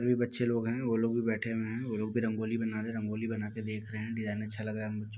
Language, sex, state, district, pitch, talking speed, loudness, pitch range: Hindi, male, Bihar, Muzaffarpur, 110 Hz, 345 wpm, -34 LUFS, 110-115 Hz